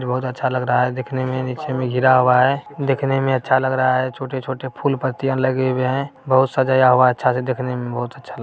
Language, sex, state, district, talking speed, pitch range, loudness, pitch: Maithili, male, Bihar, Bhagalpur, 240 wpm, 125-130 Hz, -19 LUFS, 130 Hz